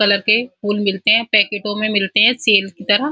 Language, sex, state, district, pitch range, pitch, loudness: Hindi, female, Uttar Pradesh, Muzaffarnagar, 205-225 Hz, 210 Hz, -15 LUFS